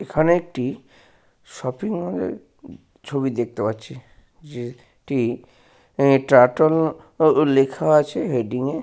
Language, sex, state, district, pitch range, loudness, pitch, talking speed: Bengali, male, West Bengal, Paschim Medinipur, 125-155 Hz, -20 LUFS, 135 Hz, 100 wpm